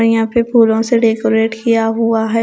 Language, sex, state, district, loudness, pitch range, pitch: Hindi, female, Punjab, Kapurthala, -13 LUFS, 225-230 Hz, 225 Hz